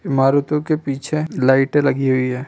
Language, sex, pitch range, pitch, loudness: Chhattisgarhi, male, 135-150 Hz, 140 Hz, -18 LUFS